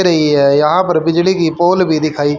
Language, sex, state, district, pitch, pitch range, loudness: Hindi, male, Haryana, Charkhi Dadri, 160 Hz, 150-175 Hz, -12 LUFS